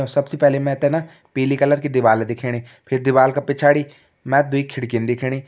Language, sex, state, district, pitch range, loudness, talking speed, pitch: Kumaoni, male, Uttarakhand, Tehri Garhwal, 130-145 Hz, -19 LUFS, 205 wpm, 140 Hz